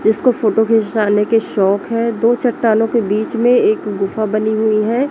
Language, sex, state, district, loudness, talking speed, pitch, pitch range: Hindi, female, Chhattisgarh, Raipur, -15 LUFS, 190 wpm, 220 Hz, 215-235 Hz